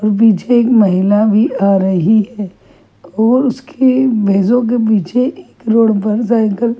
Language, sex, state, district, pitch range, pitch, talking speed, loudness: Hindi, female, Chhattisgarh, Kabirdham, 205-240 Hz, 220 Hz, 170 wpm, -12 LUFS